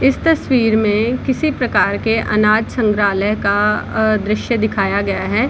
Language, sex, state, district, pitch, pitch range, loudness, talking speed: Hindi, female, Bihar, Samastipur, 215 Hz, 205-245 Hz, -16 LUFS, 140 wpm